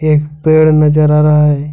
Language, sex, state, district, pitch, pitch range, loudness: Hindi, male, Jharkhand, Ranchi, 150 Hz, 150-155 Hz, -10 LUFS